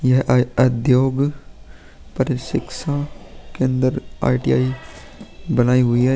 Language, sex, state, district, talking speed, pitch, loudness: Hindi, male, Bihar, Vaishali, 95 wpm, 125 Hz, -19 LUFS